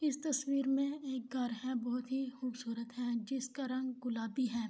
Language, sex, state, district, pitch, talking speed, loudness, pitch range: Urdu, female, Andhra Pradesh, Anantapur, 255 Hz, 190 wpm, -38 LUFS, 240-270 Hz